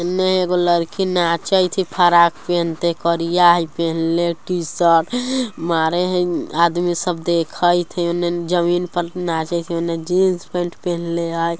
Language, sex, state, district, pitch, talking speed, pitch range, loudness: Bajjika, female, Bihar, Vaishali, 175 Hz, 140 wpm, 170-180 Hz, -18 LUFS